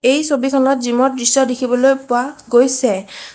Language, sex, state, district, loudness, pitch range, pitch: Assamese, female, Assam, Sonitpur, -15 LUFS, 245-270 Hz, 260 Hz